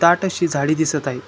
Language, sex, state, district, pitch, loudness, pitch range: Marathi, male, Maharashtra, Chandrapur, 155 Hz, -19 LUFS, 140-170 Hz